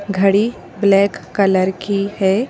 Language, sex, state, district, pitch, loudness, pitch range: Hindi, female, Madhya Pradesh, Bhopal, 200 Hz, -16 LUFS, 190-205 Hz